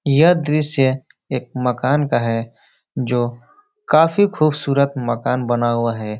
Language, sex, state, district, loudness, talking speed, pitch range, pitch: Hindi, male, Uttar Pradesh, Ghazipur, -18 LUFS, 125 wpm, 120-150 Hz, 130 Hz